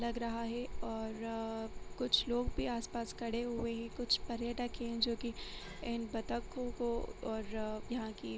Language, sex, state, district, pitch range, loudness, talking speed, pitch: Hindi, female, Jharkhand, Jamtara, 225-240 Hz, -39 LUFS, 160 wpm, 235 Hz